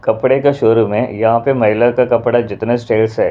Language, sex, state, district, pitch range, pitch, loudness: Hindi, male, Punjab, Pathankot, 110-125 Hz, 120 Hz, -14 LUFS